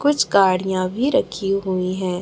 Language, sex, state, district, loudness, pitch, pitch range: Hindi, female, Chhattisgarh, Raipur, -19 LUFS, 190 Hz, 185-200 Hz